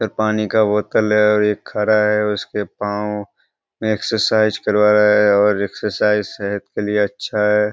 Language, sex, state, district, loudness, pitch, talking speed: Hindi, male, Bihar, Kishanganj, -17 LUFS, 105 Hz, 185 wpm